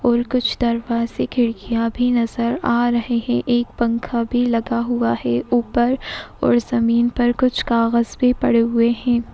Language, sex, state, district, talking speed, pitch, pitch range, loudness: Hindi, female, Uttar Pradesh, Etah, 160 wpm, 235 Hz, 230-245 Hz, -19 LUFS